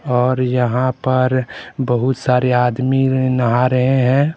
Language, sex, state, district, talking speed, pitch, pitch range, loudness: Hindi, male, Jharkhand, Deoghar, 125 wpm, 130 Hz, 125-130 Hz, -16 LUFS